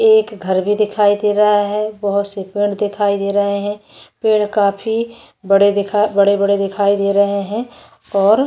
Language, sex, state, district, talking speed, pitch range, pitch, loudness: Hindi, female, Maharashtra, Chandrapur, 185 wpm, 200-210 Hz, 205 Hz, -16 LUFS